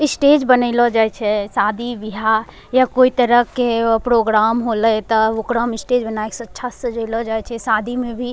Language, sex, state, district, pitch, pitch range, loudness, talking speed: Angika, female, Bihar, Bhagalpur, 230 Hz, 220-245 Hz, -17 LUFS, 185 wpm